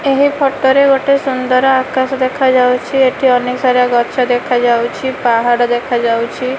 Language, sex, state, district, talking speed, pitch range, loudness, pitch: Odia, female, Odisha, Malkangiri, 125 wpm, 245-265 Hz, -13 LUFS, 255 Hz